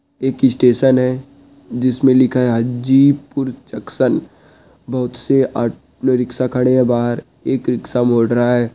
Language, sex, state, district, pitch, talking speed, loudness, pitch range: Hindi, male, Uttarakhand, Uttarkashi, 125 Hz, 145 wpm, -16 LUFS, 120-130 Hz